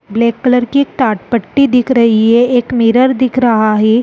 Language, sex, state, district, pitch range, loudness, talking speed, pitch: Hindi, female, Chhattisgarh, Rajnandgaon, 230-255 Hz, -11 LUFS, 210 wpm, 240 Hz